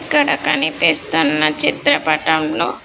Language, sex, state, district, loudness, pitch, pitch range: Telugu, female, Andhra Pradesh, Sri Satya Sai, -16 LUFS, 155 Hz, 155-170 Hz